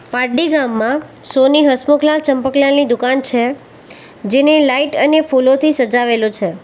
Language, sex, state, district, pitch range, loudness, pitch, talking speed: Gujarati, female, Gujarat, Valsad, 245-295 Hz, -13 LUFS, 270 Hz, 125 wpm